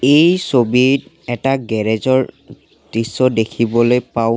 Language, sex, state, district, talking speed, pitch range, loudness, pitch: Assamese, male, Assam, Sonitpur, 110 wpm, 115-135 Hz, -16 LUFS, 125 Hz